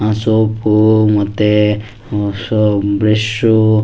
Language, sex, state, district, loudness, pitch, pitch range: Kannada, male, Karnataka, Shimoga, -13 LUFS, 105 Hz, 105-110 Hz